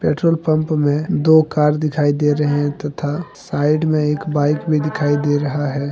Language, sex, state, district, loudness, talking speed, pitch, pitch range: Hindi, male, Jharkhand, Deoghar, -17 LUFS, 195 wpm, 150 Hz, 145-155 Hz